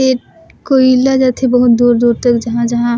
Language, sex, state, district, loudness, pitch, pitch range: Surgujia, female, Chhattisgarh, Sarguja, -12 LUFS, 245 Hz, 235-260 Hz